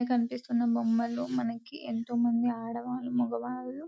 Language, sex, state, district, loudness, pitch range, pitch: Telugu, female, Telangana, Nalgonda, -31 LUFS, 235-250 Hz, 240 Hz